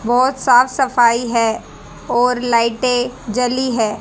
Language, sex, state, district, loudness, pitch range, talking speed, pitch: Hindi, female, Haryana, Jhajjar, -16 LUFS, 235-250 Hz, 120 wpm, 245 Hz